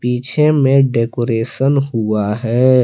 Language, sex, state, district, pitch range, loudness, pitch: Hindi, male, Jharkhand, Palamu, 115-135 Hz, -15 LUFS, 125 Hz